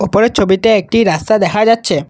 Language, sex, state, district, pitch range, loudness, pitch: Bengali, male, Assam, Kamrup Metropolitan, 190-225 Hz, -12 LUFS, 215 Hz